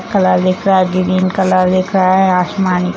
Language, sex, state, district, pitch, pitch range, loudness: Hindi, female, Bihar, Jamui, 185 Hz, 185-190 Hz, -13 LUFS